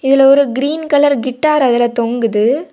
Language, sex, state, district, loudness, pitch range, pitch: Tamil, female, Tamil Nadu, Kanyakumari, -13 LUFS, 240-290 Hz, 270 Hz